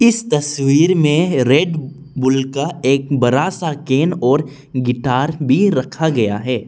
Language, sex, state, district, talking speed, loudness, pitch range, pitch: Hindi, male, Arunachal Pradesh, Lower Dibang Valley, 145 wpm, -16 LUFS, 130-160 Hz, 140 Hz